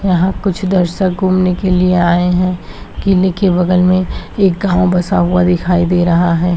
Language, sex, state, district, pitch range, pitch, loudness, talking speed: Hindi, female, Rajasthan, Nagaur, 175-185 Hz, 180 Hz, -13 LUFS, 185 wpm